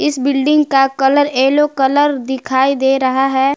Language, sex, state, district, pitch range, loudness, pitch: Hindi, female, Jharkhand, Palamu, 265-290 Hz, -14 LUFS, 270 Hz